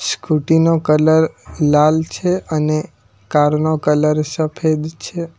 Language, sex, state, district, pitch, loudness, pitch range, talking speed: Gujarati, male, Gujarat, Valsad, 155 Hz, -16 LUFS, 150-160 Hz, 125 wpm